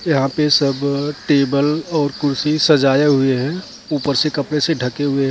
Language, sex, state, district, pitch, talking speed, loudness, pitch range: Hindi, male, Maharashtra, Mumbai Suburban, 145 Hz, 190 wpm, -17 LUFS, 140-150 Hz